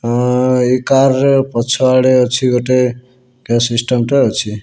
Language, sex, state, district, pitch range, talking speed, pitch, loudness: Odia, male, Odisha, Malkangiri, 120-130 Hz, 140 wpm, 125 Hz, -13 LUFS